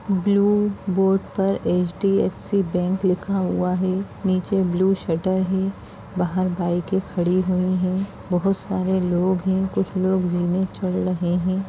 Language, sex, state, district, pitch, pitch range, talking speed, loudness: Hindi, female, Bihar, Jamui, 185 Hz, 180-195 Hz, 140 wpm, -22 LUFS